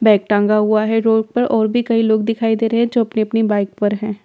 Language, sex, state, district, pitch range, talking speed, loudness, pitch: Hindi, female, Bihar, Katihar, 210-225 Hz, 280 wpm, -16 LUFS, 220 Hz